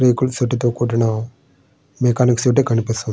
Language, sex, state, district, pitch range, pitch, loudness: Telugu, male, Andhra Pradesh, Srikakulam, 115-125 Hz, 120 Hz, -18 LUFS